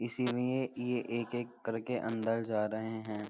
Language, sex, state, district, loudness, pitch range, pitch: Hindi, male, Uttar Pradesh, Jyotiba Phule Nagar, -34 LUFS, 110-125 Hz, 115 Hz